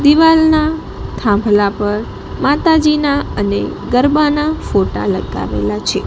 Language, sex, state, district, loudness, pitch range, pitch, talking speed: Gujarati, female, Gujarat, Gandhinagar, -14 LUFS, 205-310 Hz, 285 Hz, 100 wpm